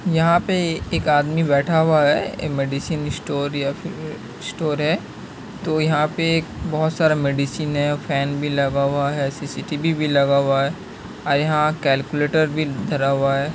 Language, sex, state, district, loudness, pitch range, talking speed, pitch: Hindi, male, Bihar, Kishanganj, -20 LUFS, 140-160 Hz, 170 wpm, 150 Hz